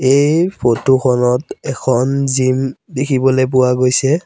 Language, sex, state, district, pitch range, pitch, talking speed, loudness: Assamese, male, Assam, Sonitpur, 125-135 Hz, 130 Hz, 110 wpm, -15 LUFS